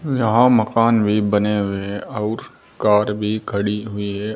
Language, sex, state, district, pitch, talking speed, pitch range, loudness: Hindi, male, Uttar Pradesh, Saharanpur, 105 Hz, 165 wpm, 105-115 Hz, -19 LUFS